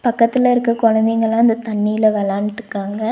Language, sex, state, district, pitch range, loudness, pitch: Tamil, female, Tamil Nadu, Nilgiris, 210-235 Hz, -16 LUFS, 225 Hz